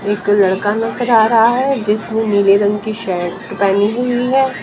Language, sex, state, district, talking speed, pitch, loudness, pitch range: Hindi, female, Haryana, Jhajjar, 180 wpm, 210 Hz, -15 LUFS, 200-230 Hz